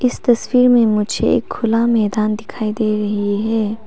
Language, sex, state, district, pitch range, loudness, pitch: Hindi, female, Arunachal Pradesh, Papum Pare, 210-235 Hz, -16 LUFS, 220 Hz